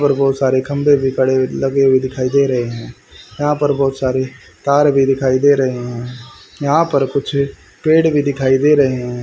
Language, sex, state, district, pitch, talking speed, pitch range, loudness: Hindi, male, Haryana, Rohtak, 135 Hz, 200 wpm, 130-140 Hz, -15 LUFS